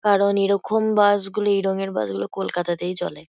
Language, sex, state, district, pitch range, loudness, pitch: Bengali, female, West Bengal, Kolkata, 175-205 Hz, -21 LUFS, 195 Hz